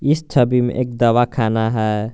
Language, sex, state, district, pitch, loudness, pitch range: Hindi, male, Jharkhand, Garhwa, 120 Hz, -17 LUFS, 110-125 Hz